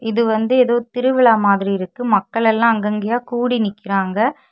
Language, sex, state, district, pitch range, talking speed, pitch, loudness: Tamil, female, Tamil Nadu, Kanyakumari, 210-240 Hz, 145 wpm, 225 Hz, -17 LUFS